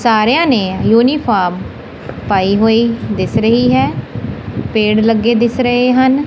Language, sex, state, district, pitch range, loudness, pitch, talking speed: Punjabi, female, Punjab, Kapurthala, 220-250 Hz, -13 LUFS, 235 Hz, 125 wpm